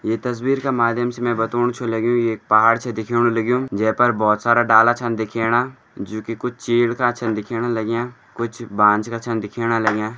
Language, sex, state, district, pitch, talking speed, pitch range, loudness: Garhwali, male, Uttarakhand, Uttarkashi, 115 Hz, 200 wpm, 110-120 Hz, -19 LUFS